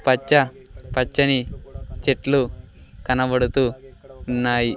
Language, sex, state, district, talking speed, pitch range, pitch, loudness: Telugu, male, Andhra Pradesh, Sri Satya Sai, 65 wpm, 120-135 Hz, 130 Hz, -21 LUFS